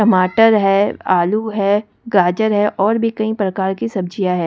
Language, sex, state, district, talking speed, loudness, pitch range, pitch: Hindi, female, Delhi, New Delhi, 175 wpm, -16 LUFS, 190-220 Hz, 205 Hz